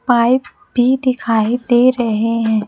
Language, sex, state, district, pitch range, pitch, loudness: Hindi, female, Chhattisgarh, Raipur, 225-250 Hz, 240 Hz, -15 LUFS